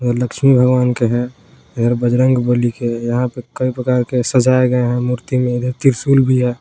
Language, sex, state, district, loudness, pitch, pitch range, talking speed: Hindi, male, Jharkhand, Palamu, -15 LUFS, 125 Hz, 120-125 Hz, 190 wpm